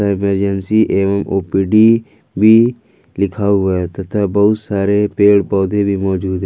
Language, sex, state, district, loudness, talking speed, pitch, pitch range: Hindi, male, Jharkhand, Ranchi, -14 LUFS, 140 wpm, 100 Hz, 95-105 Hz